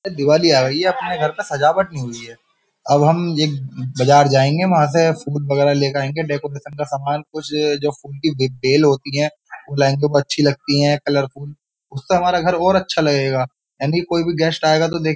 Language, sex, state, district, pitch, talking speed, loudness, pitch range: Hindi, male, Uttar Pradesh, Jyotiba Phule Nagar, 145 Hz, 220 wpm, -17 LUFS, 140-160 Hz